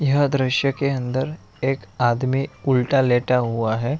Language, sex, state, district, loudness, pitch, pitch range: Hindi, male, Bihar, Araria, -21 LUFS, 130 Hz, 125-140 Hz